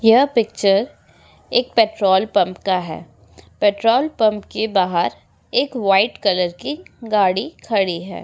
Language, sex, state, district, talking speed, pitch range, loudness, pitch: Hindi, female, Uttar Pradesh, Etah, 130 wpm, 180-230 Hz, -18 LUFS, 200 Hz